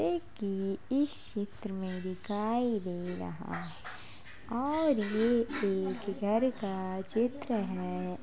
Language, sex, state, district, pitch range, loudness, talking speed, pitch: Hindi, female, Uttar Pradesh, Jalaun, 190-235 Hz, -33 LUFS, 110 wpm, 205 Hz